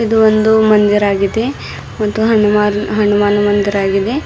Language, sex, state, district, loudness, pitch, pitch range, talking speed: Kannada, female, Karnataka, Bidar, -13 LUFS, 210 Hz, 205-220 Hz, 110 wpm